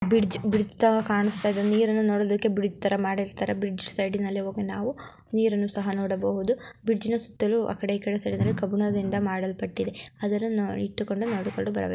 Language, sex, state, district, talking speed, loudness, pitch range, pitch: Kannada, female, Karnataka, Mysore, 145 wpm, -26 LUFS, 200-215 Hz, 205 Hz